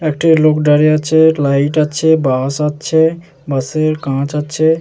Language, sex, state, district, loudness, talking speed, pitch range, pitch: Bengali, male, West Bengal, Jalpaiguri, -13 LUFS, 160 wpm, 145-160 Hz, 155 Hz